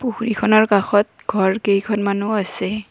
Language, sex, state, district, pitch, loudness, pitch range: Assamese, female, Assam, Kamrup Metropolitan, 210 Hz, -18 LUFS, 200-215 Hz